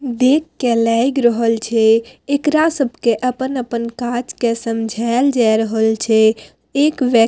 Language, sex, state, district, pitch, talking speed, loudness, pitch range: Maithili, female, Bihar, Madhepura, 240 Hz, 140 wpm, -16 LUFS, 230-260 Hz